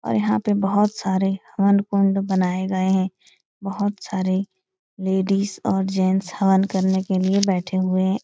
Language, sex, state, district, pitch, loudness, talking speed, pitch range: Hindi, female, Bihar, Supaul, 190 Hz, -21 LUFS, 155 wpm, 190-200 Hz